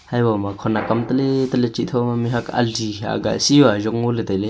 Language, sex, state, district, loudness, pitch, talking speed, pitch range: Wancho, male, Arunachal Pradesh, Longding, -19 LUFS, 120 Hz, 240 wpm, 110-120 Hz